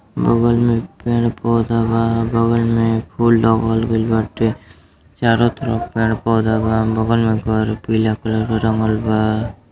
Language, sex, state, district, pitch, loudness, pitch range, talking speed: Bhojpuri, male, Uttar Pradesh, Deoria, 115 Hz, -17 LUFS, 110-115 Hz, 150 wpm